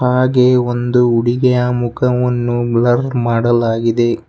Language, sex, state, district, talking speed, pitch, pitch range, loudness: Kannada, male, Karnataka, Bangalore, 85 wpm, 120 Hz, 120-125 Hz, -14 LUFS